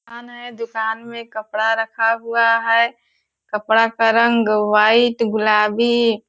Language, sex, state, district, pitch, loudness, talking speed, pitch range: Hindi, female, Bihar, Purnia, 230 Hz, -17 LUFS, 135 wpm, 220-235 Hz